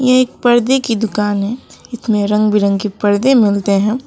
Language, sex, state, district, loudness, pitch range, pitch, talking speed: Hindi, female, West Bengal, Alipurduar, -14 LUFS, 205-245 Hz, 215 Hz, 175 wpm